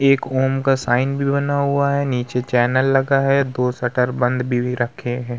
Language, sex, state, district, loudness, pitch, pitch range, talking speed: Hindi, male, Uttar Pradesh, Hamirpur, -19 LUFS, 130 Hz, 125-135 Hz, 200 wpm